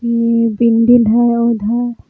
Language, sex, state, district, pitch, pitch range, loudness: Magahi, female, Jharkhand, Palamu, 235 Hz, 230-240 Hz, -13 LUFS